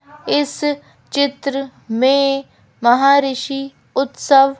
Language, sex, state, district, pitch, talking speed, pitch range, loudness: Hindi, female, Madhya Pradesh, Bhopal, 275 Hz, 65 wpm, 270-280 Hz, -17 LUFS